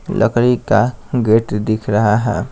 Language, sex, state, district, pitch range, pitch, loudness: Hindi, male, Bihar, Patna, 105-120 Hz, 110 Hz, -15 LUFS